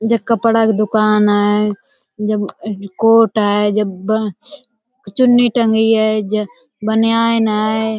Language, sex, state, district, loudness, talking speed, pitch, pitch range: Hindi, female, Uttar Pradesh, Budaun, -15 LUFS, 130 wpm, 220 Hz, 210-230 Hz